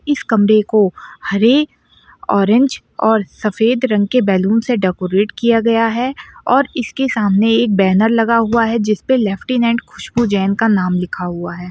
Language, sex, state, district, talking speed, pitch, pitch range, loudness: Hindi, female, Bihar, Araria, 165 wpm, 225 Hz, 200-235 Hz, -15 LUFS